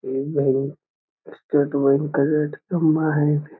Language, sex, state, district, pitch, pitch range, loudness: Magahi, male, Bihar, Lakhisarai, 145 Hz, 140-150 Hz, -21 LUFS